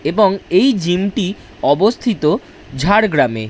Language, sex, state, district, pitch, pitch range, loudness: Bengali, male, West Bengal, Jhargram, 195 Hz, 155-215 Hz, -15 LUFS